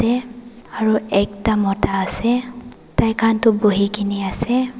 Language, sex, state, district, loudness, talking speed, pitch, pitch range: Nagamese, female, Nagaland, Dimapur, -19 LUFS, 110 wpm, 225 Hz, 200-240 Hz